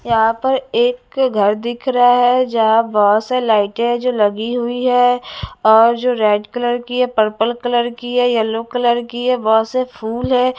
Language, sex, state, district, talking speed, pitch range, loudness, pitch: Hindi, female, Haryana, Jhajjar, 190 wpm, 225-250 Hz, -16 LUFS, 240 Hz